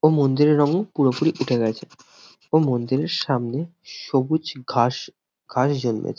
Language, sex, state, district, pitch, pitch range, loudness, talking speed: Bengali, male, West Bengal, Jhargram, 140 Hz, 125-155 Hz, -22 LUFS, 125 wpm